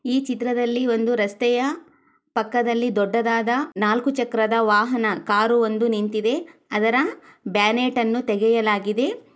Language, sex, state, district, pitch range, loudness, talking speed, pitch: Kannada, female, Karnataka, Chamarajanagar, 215-250 Hz, -21 LUFS, 100 wpm, 235 Hz